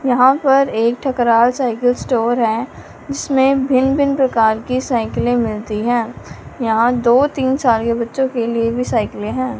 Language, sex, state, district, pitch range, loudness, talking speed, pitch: Hindi, male, Punjab, Fazilka, 230-265 Hz, -16 LUFS, 165 wpm, 245 Hz